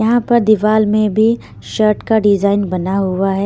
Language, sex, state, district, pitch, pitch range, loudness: Hindi, female, Haryana, Rohtak, 215 Hz, 200-220 Hz, -14 LUFS